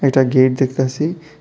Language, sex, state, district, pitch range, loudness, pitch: Bengali, male, Tripura, West Tripura, 130-150 Hz, -16 LUFS, 135 Hz